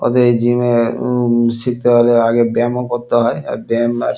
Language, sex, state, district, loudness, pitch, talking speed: Bengali, male, West Bengal, Kolkata, -15 LUFS, 120 Hz, 200 wpm